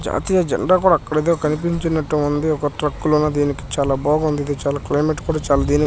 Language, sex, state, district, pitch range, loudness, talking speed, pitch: Telugu, male, Karnataka, Bellary, 145-155 Hz, -19 LUFS, 195 wpm, 150 Hz